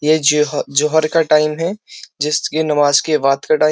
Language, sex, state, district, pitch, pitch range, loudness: Hindi, male, Uttar Pradesh, Jyotiba Phule Nagar, 155 Hz, 150-155 Hz, -15 LUFS